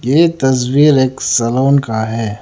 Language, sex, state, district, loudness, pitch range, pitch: Hindi, male, Arunachal Pradesh, Lower Dibang Valley, -13 LUFS, 115-140 Hz, 130 Hz